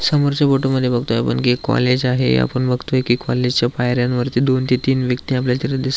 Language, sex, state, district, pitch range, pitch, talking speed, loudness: Marathi, male, Maharashtra, Aurangabad, 125-130 Hz, 125 Hz, 210 wpm, -18 LUFS